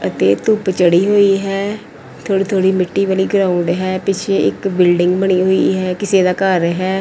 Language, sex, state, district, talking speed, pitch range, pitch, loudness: Punjabi, female, Punjab, Pathankot, 170 wpm, 185-195 Hz, 190 Hz, -15 LUFS